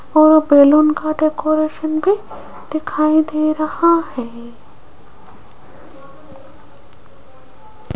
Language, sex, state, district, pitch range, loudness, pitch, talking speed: Hindi, female, Rajasthan, Jaipur, 305-310 Hz, -15 LUFS, 310 Hz, 70 wpm